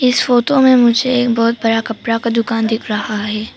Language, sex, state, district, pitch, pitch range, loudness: Hindi, female, Arunachal Pradesh, Papum Pare, 230 Hz, 225-245 Hz, -14 LUFS